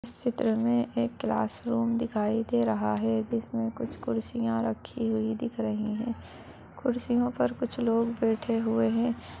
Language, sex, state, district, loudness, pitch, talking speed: Hindi, female, Uttar Pradesh, Budaun, -29 LUFS, 225 Hz, 155 wpm